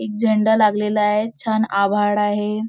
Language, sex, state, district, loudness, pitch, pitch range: Marathi, female, Maharashtra, Nagpur, -18 LUFS, 210 Hz, 210-220 Hz